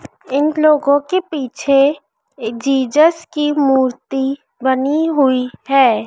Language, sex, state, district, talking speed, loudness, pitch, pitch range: Hindi, female, Madhya Pradesh, Dhar, 110 wpm, -16 LUFS, 275 Hz, 260-300 Hz